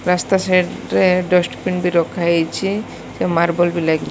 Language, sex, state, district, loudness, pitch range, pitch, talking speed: Odia, female, Odisha, Malkangiri, -17 LUFS, 170-185 Hz, 180 Hz, 145 wpm